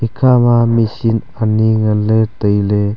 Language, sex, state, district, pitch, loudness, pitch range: Wancho, male, Arunachal Pradesh, Longding, 110 Hz, -13 LUFS, 105-115 Hz